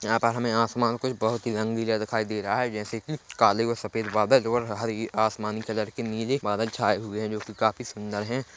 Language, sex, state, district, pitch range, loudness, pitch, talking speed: Hindi, male, Chhattisgarh, Bilaspur, 110-115 Hz, -27 LUFS, 110 Hz, 230 wpm